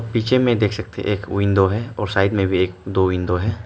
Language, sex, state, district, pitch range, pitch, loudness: Hindi, male, Arunachal Pradesh, Lower Dibang Valley, 95-110 Hz, 100 Hz, -20 LUFS